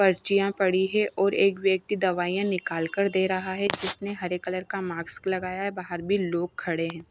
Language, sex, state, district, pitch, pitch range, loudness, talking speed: Hindi, female, Himachal Pradesh, Shimla, 190 Hz, 180-195 Hz, -26 LUFS, 205 wpm